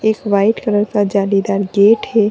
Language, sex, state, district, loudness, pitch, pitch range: Hindi, female, Bihar, Gaya, -14 LUFS, 205 Hz, 200-220 Hz